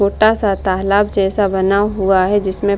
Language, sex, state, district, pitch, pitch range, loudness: Hindi, female, Bihar, Madhepura, 200 Hz, 190-205 Hz, -15 LUFS